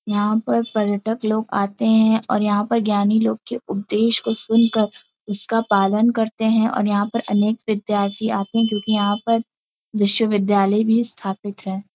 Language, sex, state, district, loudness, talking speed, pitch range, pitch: Hindi, female, Uttar Pradesh, Varanasi, -20 LUFS, 175 wpm, 205-225 Hz, 215 Hz